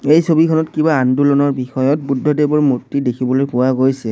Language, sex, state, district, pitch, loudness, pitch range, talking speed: Assamese, male, Assam, Sonitpur, 140 Hz, -15 LUFS, 130-150 Hz, 145 wpm